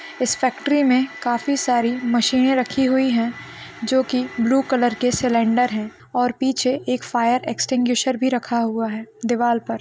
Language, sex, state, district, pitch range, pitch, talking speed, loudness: Hindi, female, Bihar, Gaya, 235-260 Hz, 250 Hz, 165 wpm, -20 LUFS